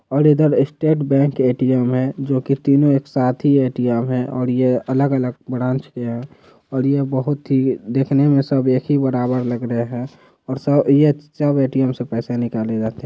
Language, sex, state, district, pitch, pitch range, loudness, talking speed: Hindi, male, Bihar, Araria, 130 Hz, 125-140 Hz, -18 LUFS, 200 wpm